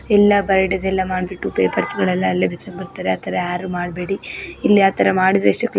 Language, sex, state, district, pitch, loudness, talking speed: Kannada, female, Karnataka, Belgaum, 185 Hz, -18 LUFS, 185 wpm